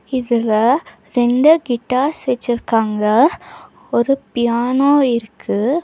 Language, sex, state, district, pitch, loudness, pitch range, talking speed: Tamil, female, Tamil Nadu, Nilgiris, 245 Hz, -16 LUFS, 235-275 Hz, 70 wpm